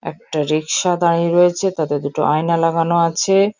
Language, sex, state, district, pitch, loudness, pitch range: Bengali, female, West Bengal, Jhargram, 170 Hz, -17 LUFS, 155-175 Hz